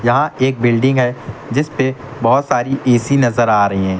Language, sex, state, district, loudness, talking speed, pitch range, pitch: Hindi, male, Uttar Pradesh, Lucknow, -15 LUFS, 195 wpm, 120-135 Hz, 125 Hz